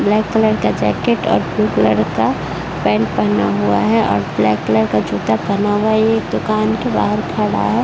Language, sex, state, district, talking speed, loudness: Hindi, female, Uttar Pradesh, Varanasi, 205 wpm, -16 LUFS